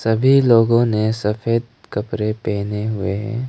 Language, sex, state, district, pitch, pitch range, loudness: Hindi, male, Arunachal Pradesh, Lower Dibang Valley, 110 Hz, 105-115 Hz, -18 LUFS